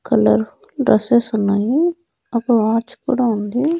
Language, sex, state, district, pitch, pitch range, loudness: Telugu, female, Andhra Pradesh, Annamaya, 235 Hz, 215-265 Hz, -17 LUFS